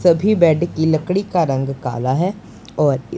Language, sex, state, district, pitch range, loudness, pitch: Hindi, male, Punjab, Pathankot, 135-180 Hz, -18 LUFS, 160 Hz